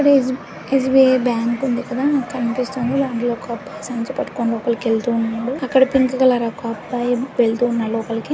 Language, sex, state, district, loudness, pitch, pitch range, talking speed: Telugu, female, Andhra Pradesh, Anantapur, -19 LUFS, 245 Hz, 235-260 Hz, 160 wpm